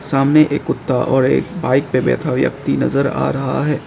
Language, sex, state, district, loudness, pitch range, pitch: Hindi, male, Assam, Kamrup Metropolitan, -16 LUFS, 125-140 Hz, 135 Hz